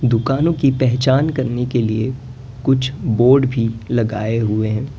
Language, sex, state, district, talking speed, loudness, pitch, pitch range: Hindi, male, Uttar Pradesh, Lalitpur, 145 wpm, -17 LUFS, 125 Hz, 115-130 Hz